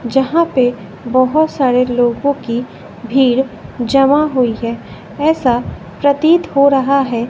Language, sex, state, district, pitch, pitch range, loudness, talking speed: Hindi, female, Bihar, West Champaran, 260 Hz, 240-280 Hz, -14 LUFS, 125 wpm